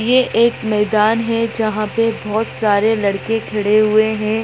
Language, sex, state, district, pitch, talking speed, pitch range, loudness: Hindi, female, Bihar, Gaya, 220 Hz, 160 wpm, 215-230 Hz, -16 LUFS